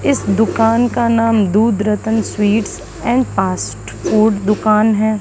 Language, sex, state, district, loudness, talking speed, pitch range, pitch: Hindi, female, Haryana, Charkhi Dadri, -15 LUFS, 140 wpm, 210-225 Hz, 215 Hz